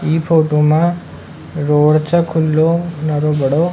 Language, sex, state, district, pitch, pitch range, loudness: Rajasthani, male, Rajasthan, Nagaur, 155 Hz, 150-165 Hz, -14 LUFS